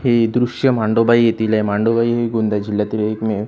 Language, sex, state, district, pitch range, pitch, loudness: Marathi, male, Maharashtra, Gondia, 110-120 Hz, 110 Hz, -17 LUFS